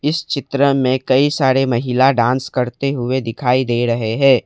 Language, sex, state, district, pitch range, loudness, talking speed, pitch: Hindi, male, Assam, Kamrup Metropolitan, 125-140 Hz, -16 LUFS, 175 wpm, 130 Hz